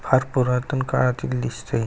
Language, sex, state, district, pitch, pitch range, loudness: Marathi, male, Maharashtra, Aurangabad, 125 Hz, 125-130 Hz, -23 LUFS